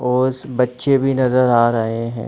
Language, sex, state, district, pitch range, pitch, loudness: Hindi, female, Chhattisgarh, Bilaspur, 115-130 Hz, 125 Hz, -17 LUFS